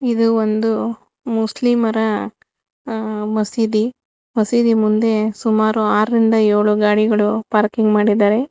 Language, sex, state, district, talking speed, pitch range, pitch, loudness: Kannada, female, Karnataka, Bangalore, 90 wpm, 215-225 Hz, 220 Hz, -17 LUFS